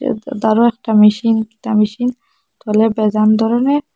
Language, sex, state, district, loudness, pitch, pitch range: Bengali, male, Assam, Hailakandi, -15 LUFS, 225 Hz, 215-250 Hz